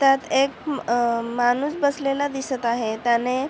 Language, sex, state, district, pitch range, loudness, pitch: Marathi, female, Maharashtra, Chandrapur, 240-275 Hz, -22 LUFS, 265 Hz